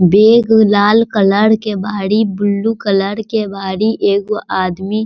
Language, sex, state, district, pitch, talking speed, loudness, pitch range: Hindi, female, Bihar, Sitamarhi, 210 Hz, 140 wpm, -13 LUFS, 200-220 Hz